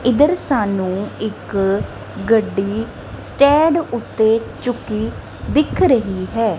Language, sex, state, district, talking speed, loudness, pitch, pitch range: Punjabi, female, Punjab, Kapurthala, 90 wpm, -18 LUFS, 225 Hz, 205-260 Hz